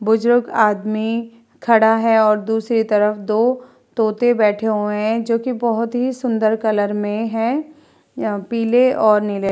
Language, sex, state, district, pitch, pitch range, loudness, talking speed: Hindi, female, Uttar Pradesh, Etah, 225 Hz, 215-235 Hz, -17 LUFS, 140 wpm